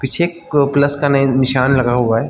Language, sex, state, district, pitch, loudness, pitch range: Hindi, male, Chhattisgarh, Rajnandgaon, 140 Hz, -15 LUFS, 130-145 Hz